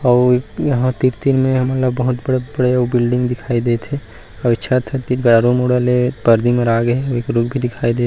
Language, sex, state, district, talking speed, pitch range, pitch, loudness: Chhattisgarhi, male, Chhattisgarh, Rajnandgaon, 230 wpm, 120-130 Hz, 125 Hz, -16 LUFS